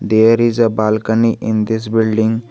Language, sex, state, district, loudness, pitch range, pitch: English, male, Jharkhand, Garhwa, -14 LUFS, 110-115 Hz, 110 Hz